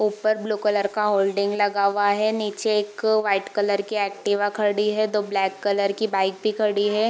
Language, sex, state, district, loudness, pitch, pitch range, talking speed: Hindi, female, Bihar, East Champaran, -22 LUFS, 205 Hz, 200-215 Hz, 195 wpm